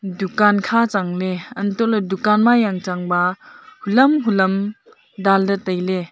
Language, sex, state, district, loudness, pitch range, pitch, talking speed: Wancho, female, Arunachal Pradesh, Longding, -18 LUFS, 185-230 Hz, 200 Hz, 145 wpm